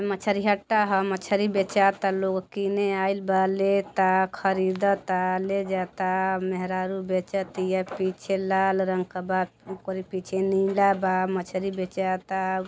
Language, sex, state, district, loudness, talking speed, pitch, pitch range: Bhojpuri, female, Uttar Pradesh, Deoria, -25 LUFS, 135 wpm, 190 Hz, 185-195 Hz